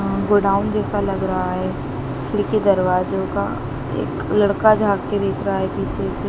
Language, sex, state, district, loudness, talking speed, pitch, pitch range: Hindi, female, Madhya Pradesh, Dhar, -20 LUFS, 170 wpm, 205 Hz, 195-210 Hz